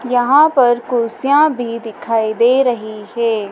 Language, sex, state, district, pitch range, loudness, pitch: Hindi, female, Madhya Pradesh, Dhar, 225-260 Hz, -15 LUFS, 240 Hz